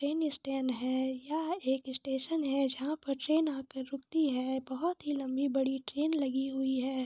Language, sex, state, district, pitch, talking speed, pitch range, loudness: Hindi, female, Jharkhand, Sahebganj, 270 Hz, 180 wpm, 265-295 Hz, -34 LUFS